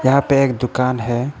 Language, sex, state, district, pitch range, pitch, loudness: Hindi, male, Arunachal Pradesh, Papum Pare, 125-135 Hz, 130 Hz, -18 LUFS